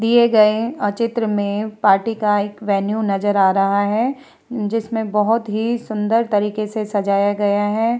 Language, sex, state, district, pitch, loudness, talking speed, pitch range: Hindi, female, Bihar, Vaishali, 215 Hz, -18 LUFS, 165 wpm, 205-225 Hz